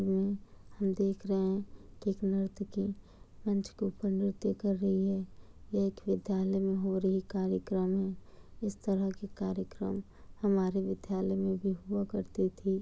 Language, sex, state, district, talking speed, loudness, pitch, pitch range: Hindi, female, Bihar, Kishanganj, 160 wpm, -34 LUFS, 195 Hz, 190-200 Hz